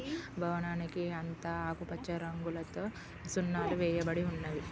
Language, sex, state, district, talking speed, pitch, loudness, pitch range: Telugu, female, Andhra Pradesh, Guntur, 90 wpm, 170 Hz, -37 LUFS, 165-175 Hz